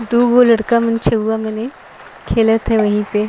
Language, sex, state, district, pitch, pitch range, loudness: Sadri, female, Chhattisgarh, Jashpur, 225 Hz, 220-235 Hz, -15 LUFS